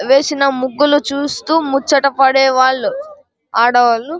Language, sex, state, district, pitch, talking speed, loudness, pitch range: Telugu, male, Andhra Pradesh, Anantapur, 275 Hz, 85 wpm, -14 LUFS, 260-290 Hz